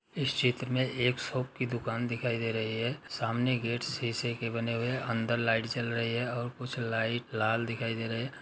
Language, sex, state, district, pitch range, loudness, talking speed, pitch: Hindi, male, Maharashtra, Nagpur, 115-125 Hz, -32 LUFS, 220 wpm, 120 Hz